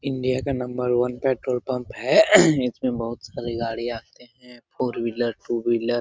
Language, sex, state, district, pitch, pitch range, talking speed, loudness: Hindi, male, Bihar, Lakhisarai, 125 Hz, 120-130 Hz, 180 wpm, -23 LUFS